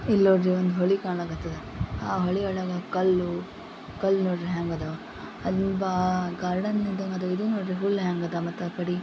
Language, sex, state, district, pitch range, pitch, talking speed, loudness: Kannada, female, Karnataka, Gulbarga, 180-195 Hz, 185 Hz, 165 wpm, -27 LUFS